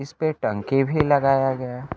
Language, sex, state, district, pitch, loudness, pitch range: Hindi, male, Bihar, Kaimur, 135 Hz, -22 LUFS, 130-145 Hz